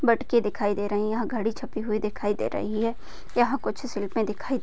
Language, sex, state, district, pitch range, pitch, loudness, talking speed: Hindi, female, Maharashtra, Pune, 210-240 Hz, 220 Hz, -27 LUFS, 235 wpm